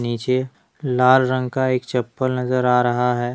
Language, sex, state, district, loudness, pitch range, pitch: Hindi, male, Jharkhand, Deoghar, -19 LUFS, 125-130 Hz, 125 Hz